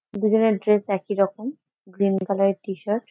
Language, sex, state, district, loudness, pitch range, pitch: Bengali, female, West Bengal, Jalpaiguri, -22 LUFS, 195-215 Hz, 200 Hz